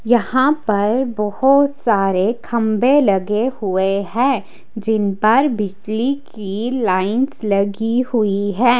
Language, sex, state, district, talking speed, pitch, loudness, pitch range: Hindi, female, Haryana, Charkhi Dadri, 100 wpm, 220 Hz, -17 LUFS, 205-250 Hz